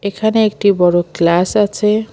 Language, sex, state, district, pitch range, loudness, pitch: Bengali, female, West Bengal, Alipurduar, 175-215 Hz, -14 LUFS, 200 Hz